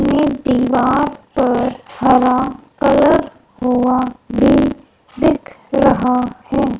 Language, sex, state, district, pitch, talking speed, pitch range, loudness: Hindi, male, Haryana, Charkhi Dadri, 265 Hz, 90 wpm, 255-285 Hz, -15 LUFS